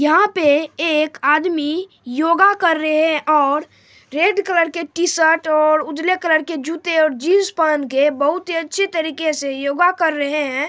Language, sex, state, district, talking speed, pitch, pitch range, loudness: Hindi, female, Bihar, Supaul, 175 wpm, 315 Hz, 300-335 Hz, -17 LUFS